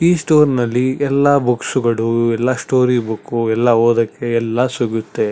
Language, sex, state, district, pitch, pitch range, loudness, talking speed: Kannada, male, Karnataka, Chamarajanagar, 120 Hz, 115-130 Hz, -16 LUFS, 145 wpm